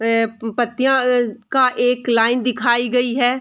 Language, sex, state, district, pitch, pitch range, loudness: Hindi, female, Bihar, Sitamarhi, 245 Hz, 230-250 Hz, -18 LUFS